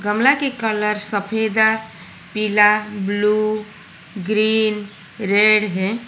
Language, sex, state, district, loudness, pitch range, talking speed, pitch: Hindi, female, Gujarat, Valsad, -18 LUFS, 205-220 Hz, 100 wpm, 210 Hz